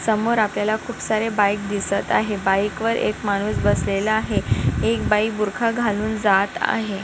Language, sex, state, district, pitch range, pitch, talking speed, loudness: Marathi, female, Maharashtra, Nagpur, 200-220 Hz, 210 Hz, 160 wpm, -21 LUFS